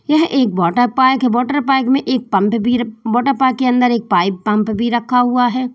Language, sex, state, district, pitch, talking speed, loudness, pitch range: Hindi, female, Uttar Pradesh, Lalitpur, 245 Hz, 230 wpm, -15 LUFS, 225-260 Hz